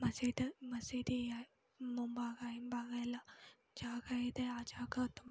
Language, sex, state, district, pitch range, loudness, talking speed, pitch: Kannada, female, Karnataka, Mysore, 240-250 Hz, -43 LUFS, 100 wpm, 245 Hz